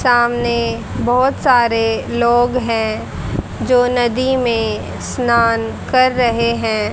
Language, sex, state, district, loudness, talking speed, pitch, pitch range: Hindi, female, Haryana, Charkhi Dadri, -16 LUFS, 105 wpm, 240 Hz, 230-250 Hz